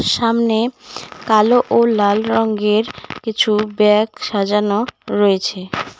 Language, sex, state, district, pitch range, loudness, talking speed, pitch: Bengali, female, West Bengal, Cooch Behar, 210-230 Hz, -16 LUFS, 90 wpm, 215 Hz